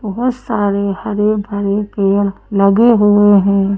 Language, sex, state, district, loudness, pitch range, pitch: Hindi, female, Madhya Pradesh, Bhopal, -13 LUFS, 200-210 Hz, 205 Hz